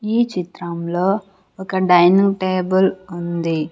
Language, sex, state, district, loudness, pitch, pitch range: Telugu, female, Andhra Pradesh, Sri Satya Sai, -18 LUFS, 185 Hz, 175-190 Hz